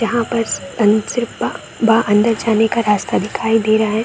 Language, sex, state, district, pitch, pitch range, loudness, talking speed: Hindi, female, Bihar, Saran, 225 Hz, 215-230 Hz, -16 LUFS, 205 wpm